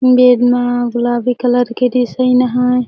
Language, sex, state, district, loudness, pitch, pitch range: Surgujia, female, Chhattisgarh, Sarguja, -13 LUFS, 245 Hz, 245-250 Hz